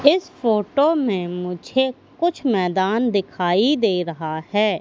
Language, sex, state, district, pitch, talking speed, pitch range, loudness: Hindi, female, Madhya Pradesh, Katni, 210 Hz, 125 wpm, 180-270 Hz, -20 LUFS